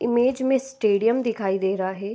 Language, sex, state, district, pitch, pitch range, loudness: Hindi, female, Bihar, Begusarai, 225 Hz, 195-255 Hz, -23 LUFS